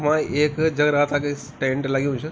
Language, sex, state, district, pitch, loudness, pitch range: Garhwali, male, Uttarakhand, Tehri Garhwal, 145 Hz, -22 LUFS, 140-150 Hz